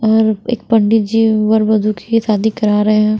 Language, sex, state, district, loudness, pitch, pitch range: Hindi, female, Bihar, Patna, -14 LUFS, 215 Hz, 215-220 Hz